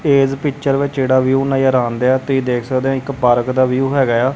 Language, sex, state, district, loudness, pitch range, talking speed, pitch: Punjabi, male, Punjab, Kapurthala, -16 LUFS, 130-135 Hz, 245 wpm, 130 Hz